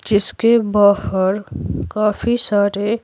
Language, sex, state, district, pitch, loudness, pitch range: Hindi, female, Bihar, Patna, 205 Hz, -17 LUFS, 200-225 Hz